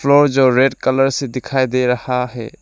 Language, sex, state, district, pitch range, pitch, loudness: Hindi, male, Arunachal Pradesh, Lower Dibang Valley, 125-135 Hz, 130 Hz, -16 LUFS